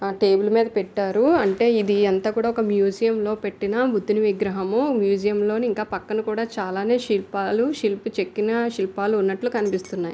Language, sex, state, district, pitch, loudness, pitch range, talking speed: Telugu, female, Andhra Pradesh, Visakhapatnam, 210 Hz, -22 LUFS, 200-225 Hz, 155 wpm